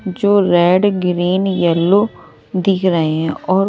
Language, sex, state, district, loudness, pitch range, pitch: Hindi, male, Odisha, Malkangiri, -15 LUFS, 175-195 Hz, 185 Hz